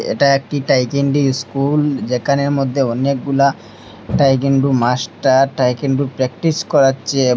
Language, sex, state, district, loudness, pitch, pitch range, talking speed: Bengali, male, Assam, Hailakandi, -16 LUFS, 135 Hz, 130-140 Hz, 100 wpm